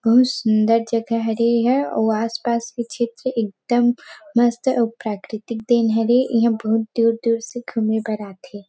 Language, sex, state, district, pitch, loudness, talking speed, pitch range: Chhattisgarhi, female, Chhattisgarh, Rajnandgaon, 230 Hz, -20 LUFS, 165 wpm, 220-240 Hz